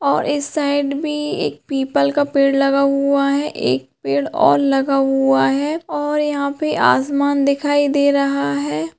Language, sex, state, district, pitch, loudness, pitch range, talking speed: Hindi, female, Jharkhand, Sahebganj, 280 Hz, -17 LUFS, 270-290 Hz, 165 wpm